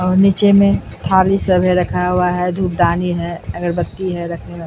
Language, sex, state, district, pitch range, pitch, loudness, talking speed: Hindi, female, Bihar, Katihar, 170-185 Hz, 180 Hz, -16 LUFS, 195 wpm